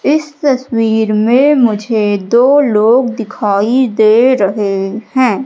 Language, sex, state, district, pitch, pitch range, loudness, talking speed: Hindi, female, Madhya Pradesh, Katni, 230 Hz, 210-260 Hz, -11 LUFS, 110 wpm